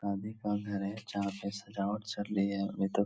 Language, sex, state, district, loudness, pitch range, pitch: Hindi, male, Uttar Pradesh, Etah, -36 LUFS, 100-105 Hz, 100 Hz